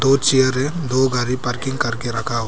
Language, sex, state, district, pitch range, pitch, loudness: Hindi, male, Arunachal Pradesh, Papum Pare, 120-135 Hz, 130 Hz, -19 LUFS